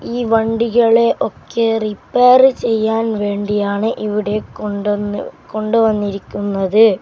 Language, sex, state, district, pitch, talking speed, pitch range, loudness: Malayalam, male, Kerala, Kasaragod, 220 Hz, 70 wpm, 205-230 Hz, -16 LUFS